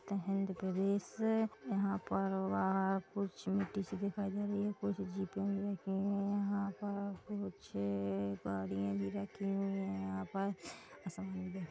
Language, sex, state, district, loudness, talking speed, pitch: Hindi, female, Chhattisgarh, Bilaspur, -39 LUFS, 140 wpm, 195 Hz